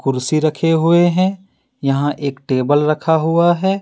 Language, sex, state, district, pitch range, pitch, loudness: Hindi, male, Jharkhand, Deoghar, 140-175 Hz, 155 Hz, -16 LUFS